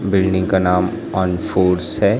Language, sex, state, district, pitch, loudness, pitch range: Hindi, male, Chhattisgarh, Raipur, 95 Hz, -17 LUFS, 90-95 Hz